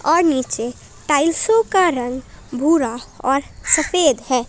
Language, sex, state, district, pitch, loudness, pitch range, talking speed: Hindi, female, Jharkhand, Palamu, 290 Hz, -18 LUFS, 255-330 Hz, 120 wpm